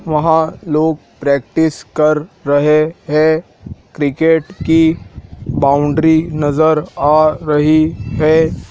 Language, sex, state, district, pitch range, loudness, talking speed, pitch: Hindi, male, Madhya Pradesh, Dhar, 145-160 Hz, -14 LUFS, 90 wpm, 155 Hz